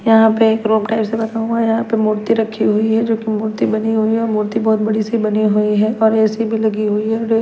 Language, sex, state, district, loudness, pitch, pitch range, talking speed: Hindi, female, Punjab, Kapurthala, -16 LUFS, 220 Hz, 215-225 Hz, 300 wpm